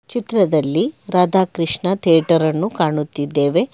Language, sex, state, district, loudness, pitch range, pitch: Kannada, male, Karnataka, Bangalore, -17 LUFS, 155-190 Hz, 165 Hz